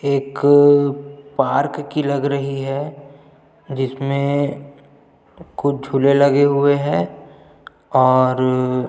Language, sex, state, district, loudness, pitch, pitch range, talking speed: Hindi, male, Chhattisgarh, Jashpur, -17 LUFS, 140 Hz, 135-145 Hz, 90 wpm